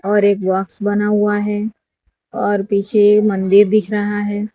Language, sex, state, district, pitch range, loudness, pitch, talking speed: Hindi, female, Gujarat, Valsad, 200-210 Hz, -16 LUFS, 205 Hz, 170 wpm